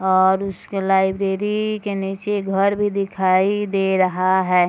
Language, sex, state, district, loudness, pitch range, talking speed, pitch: Hindi, female, Bihar, Purnia, -19 LUFS, 190-200 Hz, 140 wpm, 195 Hz